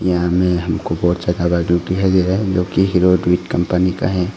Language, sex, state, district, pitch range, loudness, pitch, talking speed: Hindi, male, Arunachal Pradesh, Longding, 85-95 Hz, -17 LUFS, 90 Hz, 220 wpm